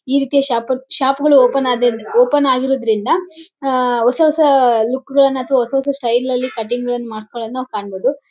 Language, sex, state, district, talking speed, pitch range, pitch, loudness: Kannada, female, Karnataka, Bellary, 165 wpm, 240-275 Hz, 255 Hz, -15 LUFS